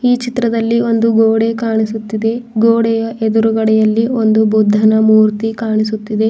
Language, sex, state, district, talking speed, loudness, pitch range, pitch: Kannada, female, Karnataka, Bidar, 95 wpm, -13 LUFS, 220-230 Hz, 225 Hz